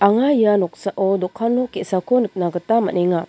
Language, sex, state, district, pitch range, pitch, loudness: Garo, female, Meghalaya, West Garo Hills, 185-230 Hz, 200 Hz, -19 LUFS